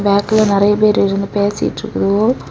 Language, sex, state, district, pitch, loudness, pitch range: Tamil, female, Tamil Nadu, Kanyakumari, 205 Hz, -14 LUFS, 200-210 Hz